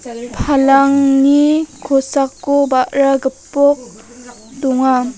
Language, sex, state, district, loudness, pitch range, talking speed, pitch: Garo, female, Meghalaya, North Garo Hills, -14 LUFS, 250-280 Hz, 60 wpm, 270 Hz